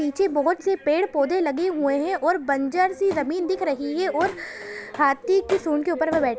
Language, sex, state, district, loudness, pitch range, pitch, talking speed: Hindi, female, Bihar, Saran, -23 LUFS, 290-370 Hz, 325 Hz, 205 wpm